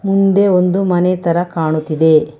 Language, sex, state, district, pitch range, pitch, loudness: Kannada, female, Karnataka, Bangalore, 160-190 Hz, 180 Hz, -14 LUFS